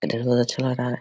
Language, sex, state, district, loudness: Hindi, male, Bihar, Vaishali, -23 LUFS